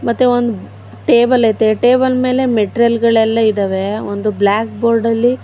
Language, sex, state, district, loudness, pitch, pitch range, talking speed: Kannada, female, Karnataka, Bangalore, -14 LUFS, 230 Hz, 210-240 Hz, 155 wpm